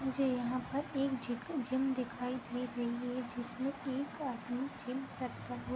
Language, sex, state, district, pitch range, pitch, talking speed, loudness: Hindi, female, Jharkhand, Sahebganj, 245-270 Hz, 255 Hz, 175 wpm, -38 LUFS